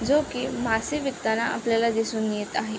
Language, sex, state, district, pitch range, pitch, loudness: Marathi, female, Maharashtra, Aurangabad, 220-255 Hz, 230 Hz, -26 LUFS